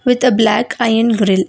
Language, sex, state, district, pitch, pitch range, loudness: English, female, Karnataka, Bangalore, 225 Hz, 210-245 Hz, -14 LUFS